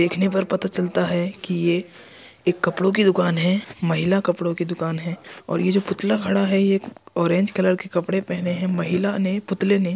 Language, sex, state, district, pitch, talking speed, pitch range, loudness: Hindi, male, Uttar Pradesh, Jyotiba Phule Nagar, 185 Hz, 210 wpm, 175-195 Hz, -21 LUFS